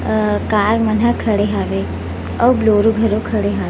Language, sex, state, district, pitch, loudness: Chhattisgarhi, female, Chhattisgarh, Rajnandgaon, 205 Hz, -16 LUFS